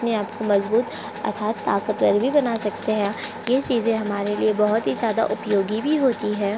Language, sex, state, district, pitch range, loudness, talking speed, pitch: Hindi, female, Chhattisgarh, Korba, 210-235 Hz, -22 LUFS, 190 wpm, 220 Hz